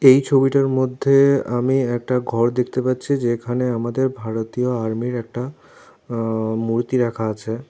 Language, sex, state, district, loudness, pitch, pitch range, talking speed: Bengali, male, Tripura, South Tripura, -20 LUFS, 125 Hz, 115-130 Hz, 130 wpm